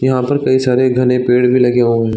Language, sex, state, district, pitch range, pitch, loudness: Hindi, male, Chhattisgarh, Bilaspur, 125-130 Hz, 125 Hz, -13 LUFS